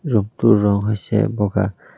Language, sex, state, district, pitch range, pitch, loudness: Assamese, male, Assam, Kamrup Metropolitan, 105-110 Hz, 105 Hz, -18 LUFS